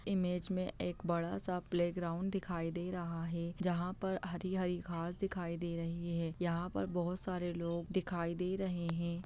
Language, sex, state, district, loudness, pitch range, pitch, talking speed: Hindi, female, Bihar, Muzaffarpur, -38 LUFS, 170-185 Hz, 175 Hz, 170 wpm